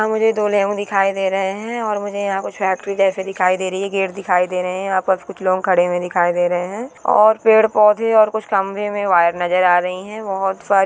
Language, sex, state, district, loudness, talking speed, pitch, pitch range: Hindi, female, Andhra Pradesh, Chittoor, -17 LUFS, 245 wpm, 195 Hz, 185-210 Hz